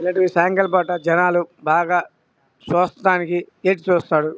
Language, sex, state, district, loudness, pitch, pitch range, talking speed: Telugu, male, Andhra Pradesh, Krishna, -19 LUFS, 180 Hz, 175-185 Hz, 125 wpm